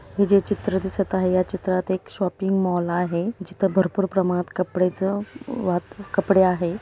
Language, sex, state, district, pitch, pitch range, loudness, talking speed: Marathi, female, Maharashtra, Dhule, 190 Hz, 180-195 Hz, -23 LUFS, 160 wpm